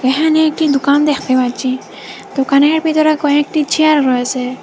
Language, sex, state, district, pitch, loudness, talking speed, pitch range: Bengali, female, Assam, Hailakandi, 285 Hz, -13 LUFS, 130 wpm, 260-310 Hz